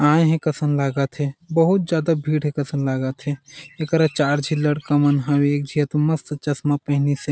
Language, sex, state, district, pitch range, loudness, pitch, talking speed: Chhattisgarhi, male, Chhattisgarh, Jashpur, 145-155 Hz, -21 LUFS, 145 Hz, 190 wpm